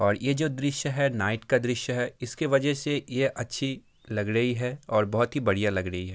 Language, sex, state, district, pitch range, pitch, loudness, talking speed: Hindi, male, Bihar, Kishanganj, 110-140 Hz, 125 Hz, -27 LUFS, 245 wpm